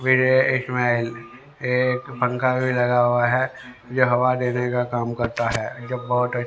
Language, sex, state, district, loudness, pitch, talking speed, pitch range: Hindi, male, Haryana, Rohtak, -21 LUFS, 125 Hz, 150 wpm, 120-125 Hz